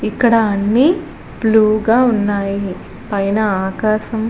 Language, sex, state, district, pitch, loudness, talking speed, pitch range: Telugu, female, Andhra Pradesh, Visakhapatnam, 215 Hz, -15 LUFS, 110 wpm, 200-230 Hz